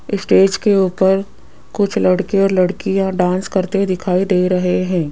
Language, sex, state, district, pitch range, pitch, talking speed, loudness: Hindi, female, Rajasthan, Jaipur, 185-195 Hz, 190 Hz, 150 wpm, -16 LUFS